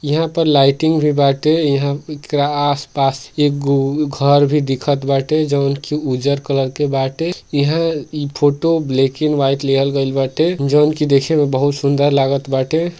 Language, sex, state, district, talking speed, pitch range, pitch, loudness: Bhojpuri, male, Uttar Pradesh, Gorakhpur, 160 wpm, 140-150 Hz, 145 Hz, -16 LUFS